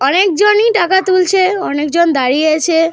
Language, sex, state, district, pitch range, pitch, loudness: Bengali, female, Jharkhand, Jamtara, 310-380 Hz, 355 Hz, -12 LUFS